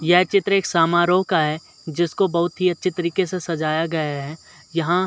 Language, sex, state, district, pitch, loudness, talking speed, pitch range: Hindi, male, Uttar Pradesh, Muzaffarnagar, 175 Hz, -20 LUFS, 200 wpm, 160-185 Hz